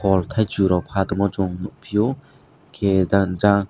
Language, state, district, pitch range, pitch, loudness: Kokborok, Tripura, West Tripura, 95-105 Hz, 100 Hz, -21 LUFS